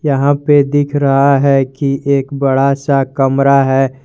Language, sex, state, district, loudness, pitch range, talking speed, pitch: Hindi, male, Jharkhand, Garhwa, -12 LUFS, 135-140 Hz, 165 wpm, 140 Hz